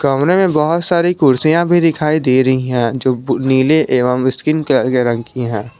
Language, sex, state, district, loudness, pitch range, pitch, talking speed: Hindi, male, Jharkhand, Garhwa, -14 LUFS, 130-155 Hz, 135 Hz, 205 wpm